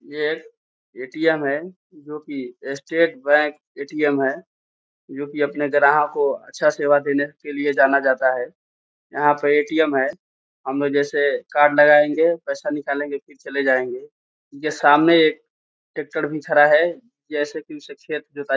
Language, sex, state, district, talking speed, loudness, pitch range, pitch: Hindi, male, Bihar, Saran, 145 wpm, -19 LUFS, 140-150 Hz, 145 Hz